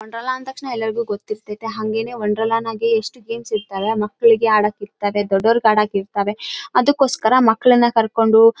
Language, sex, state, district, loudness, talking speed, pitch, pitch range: Kannada, female, Karnataka, Raichur, -18 LUFS, 35 wpm, 225 Hz, 210-235 Hz